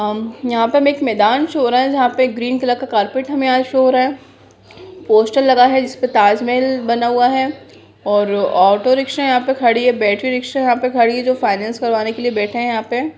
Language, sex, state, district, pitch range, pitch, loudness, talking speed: Hindi, female, Bihar, Purnia, 230-260 Hz, 250 Hz, -15 LUFS, 235 wpm